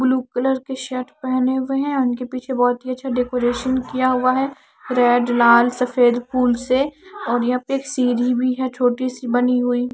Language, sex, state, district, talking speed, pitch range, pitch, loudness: Hindi, female, Haryana, Charkhi Dadri, 195 wpm, 245-260 Hz, 255 Hz, -19 LUFS